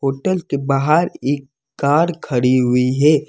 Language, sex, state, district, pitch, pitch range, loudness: Hindi, male, Jharkhand, Deoghar, 140 Hz, 130-150 Hz, -17 LUFS